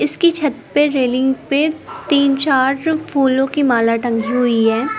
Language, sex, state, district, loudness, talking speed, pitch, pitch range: Hindi, female, Uttar Pradesh, Saharanpur, -16 LUFS, 155 wpm, 270 Hz, 245-295 Hz